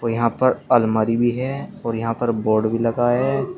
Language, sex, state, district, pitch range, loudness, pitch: Hindi, male, Uttar Pradesh, Shamli, 115-125 Hz, -20 LUFS, 115 Hz